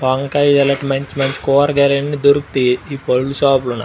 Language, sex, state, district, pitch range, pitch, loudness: Telugu, male, Andhra Pradesh, Srikakulam, 135-140 Hz, 140 Hz, -15 LUFS